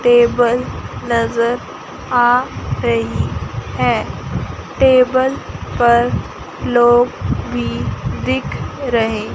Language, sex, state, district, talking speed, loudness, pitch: Hindi, female, Chandigarh, Chandigarh, 70 wpm, -16 LUFS, 230 Hz